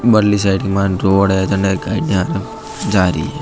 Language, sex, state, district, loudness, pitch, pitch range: Marwari, male, Rajasthan, Nagaur, -16 LUFS, 95 Hz, 95-100 Hz